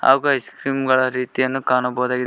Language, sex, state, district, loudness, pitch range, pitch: Kannada, male, Karnataka, Koppal, -19 LUFS, 125-135 Hz, 130 Hz